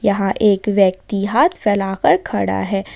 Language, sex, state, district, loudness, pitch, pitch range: Hindi, female, Jharkhand, Ranchi, -17 LUFS, 200 Hz, 195-210 Hz